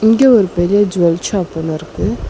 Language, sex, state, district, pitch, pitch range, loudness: Tamil, female, Tamil Nadu, Chennai, 180 Hz, 165-205 Hz, -14 LUFS